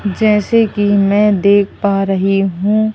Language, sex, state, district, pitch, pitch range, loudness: Hindi, female, Madhya Pradesh, Katni, 205 Hz, 195-210 Hz, -13 LUFS